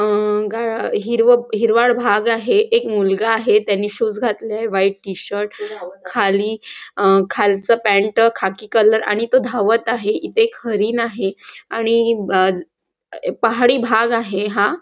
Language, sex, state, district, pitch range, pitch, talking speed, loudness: Marathi, female, Maharashtra, Nagpur, 205-230 Hz, 220 Hz, 130 wpm, -17 LUFS